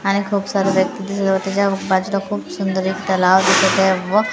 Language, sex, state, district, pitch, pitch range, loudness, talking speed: Marathi, female, Maharashtra, Gondia, 195 Hz, 190-200 Hz, -17 LUFS, 195 wpm